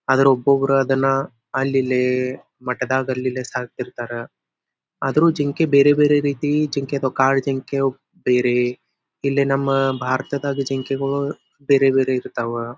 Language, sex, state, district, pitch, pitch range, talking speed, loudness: Kannada, male, Karnataka, Dharwad, 135 Hz, 130-140 Hz, 110 wpm, -20 LUFS